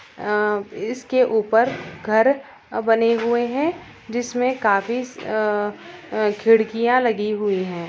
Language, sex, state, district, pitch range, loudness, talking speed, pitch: Hindi, female, Bihar, Darbhanga, 210-245 Hz, -21 LUFS, 115 wpm, 225 Hz